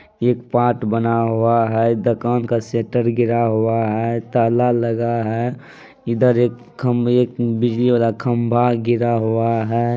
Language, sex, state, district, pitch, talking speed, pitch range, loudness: Maithili, male, Bihar, Madhepura, 120 Hz, 140 wpm, 115-120 Hz, -18 LUFS